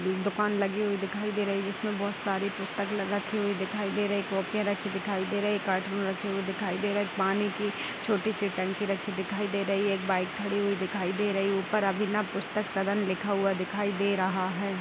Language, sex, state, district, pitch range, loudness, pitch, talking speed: Hindi, female, Bihar, Vaishali, 195-205 Hz, -30 LUFS, 200 Hz, 245 wpm